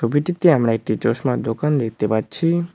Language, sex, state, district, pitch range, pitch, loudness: Bengali, male, West Bengal, Cooch Behar, 115-170 Hz, 145 Hz, -19 LUFS